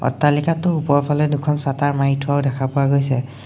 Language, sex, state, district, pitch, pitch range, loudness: Assamese, male, Assam, Sonitpur, 140 Hz, 135-145 Hz, -19 LUFS